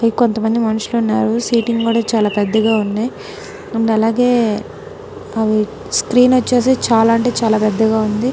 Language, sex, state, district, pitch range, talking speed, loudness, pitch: Telugu, female, Telangana, Karimnagar, 220-240 Hz, 130 wpm, -15 LUFS, 230 Hz